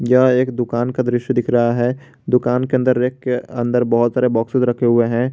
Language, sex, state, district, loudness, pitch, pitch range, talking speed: Hindi, male, Jharkhand, Garhwa, -17 LUFS, 125 Hz, 120-125 Hz, 225 wpm